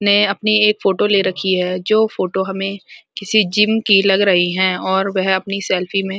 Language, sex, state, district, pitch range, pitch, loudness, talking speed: Hindi, female, Uttarakhand, Uttarkashi, 190-210 Hz, 195 Hz, -16 LUFS, 215 wpm